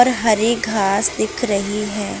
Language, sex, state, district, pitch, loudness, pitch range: Hindi, female, Uttar Pradesh, Lucknow, 215 Hz, -18 LUFS, 205-225 Hz